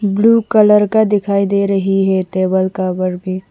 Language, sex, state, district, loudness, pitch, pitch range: Hindi, female, Mizoram, Aizawl, -14 LUFS, 195 Hz, 185-205 Hz